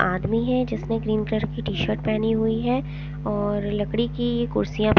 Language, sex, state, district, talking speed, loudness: Hindi, female, Punjab, Pathankot, 180 wpm, -24 LUFS